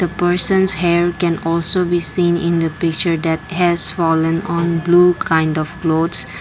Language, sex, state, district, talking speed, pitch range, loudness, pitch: English, female, Assam, Kamrup Metropolitan, 170 wpm, 165-175 Hz, -16 LUFS, 170 Hz